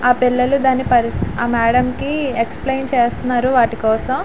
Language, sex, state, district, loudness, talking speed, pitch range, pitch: Telugu, female, Andhra Pradesh, Visakhapatnam, -17 LUFS, 155 wpm, 240-260 Hz, 250 Hz